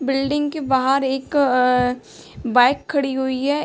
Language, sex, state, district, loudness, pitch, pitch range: Hindi, female, Bihar, Gopalganj, -19 LUFS, 270 Hz, 255-285 Hz